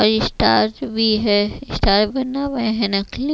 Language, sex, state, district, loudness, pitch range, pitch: Hindi, female, Chhattisgarh, Raipur, -18 LUFS, 195-255 Hz, 215 Hz